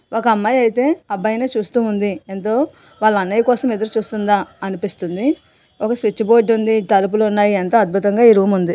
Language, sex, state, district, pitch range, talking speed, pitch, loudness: Telugu, female, Andhra Pradesh, Visakhapatnam, 205-235 Hz, 165 wpm, 215 Hz, -16 LUFS